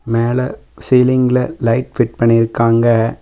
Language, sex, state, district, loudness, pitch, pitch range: Tamil, male, Tamil Nadu, Namakkal, -14 LUFS, 115 Hz, 115-125 Hz